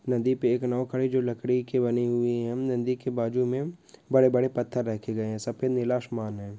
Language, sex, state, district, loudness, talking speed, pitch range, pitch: Hindi, male, West Bengal, Dakshin Dinajpur, -27 LUFS, 225 wpm, 120-130 Hz, 125 Hz